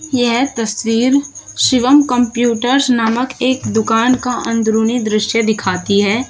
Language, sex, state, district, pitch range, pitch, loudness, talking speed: Hindi, female, Uttar Pradesh, Shamli, 225-255 Hz, 240 Hz, -14 LUFS, 115 wpm